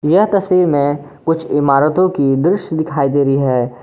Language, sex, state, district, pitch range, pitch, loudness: Hindi, male, Jharkhand, Garhwa, 140-175 Hz, 145 Hz, -15 LUFS